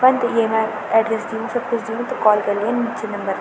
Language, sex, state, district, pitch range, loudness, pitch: Garhwali, female, Uttarakhand, Tehri Garhwal, 220-235 Hz, -20 LUFS, 225 Hz